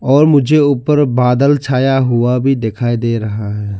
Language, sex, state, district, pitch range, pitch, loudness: Hindi, male, Arunachal Pradesh, Lower Dibang Valley, 115-140 Hz, 125 Hz, -13 LUFS